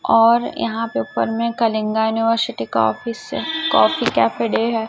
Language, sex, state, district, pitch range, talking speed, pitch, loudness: Hindi, female, Chhattisgarh, Raipur, 215-230 Hz, 160 wpm, 225 Hz, -19 LUFS